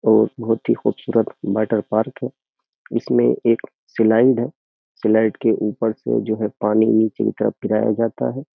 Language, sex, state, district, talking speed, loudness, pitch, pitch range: Hindi, male, Uttar Pradesh, Jyotiba Phule Nagar, 170 wpm, -19 LUFS, 110 Hz, 110-115 Hz